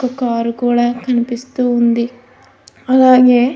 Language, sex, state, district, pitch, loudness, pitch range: Telugu, female, Andhra Pradesh, Anantapur, 245 Hz, -14 LUFS, 240-255 Hz